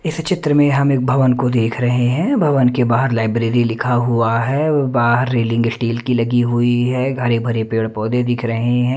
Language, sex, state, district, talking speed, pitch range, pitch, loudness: Hindi, male, Delhi, New Delhi, 205 wpm, 115-130 Hz, 120 Hz, -16 LUFS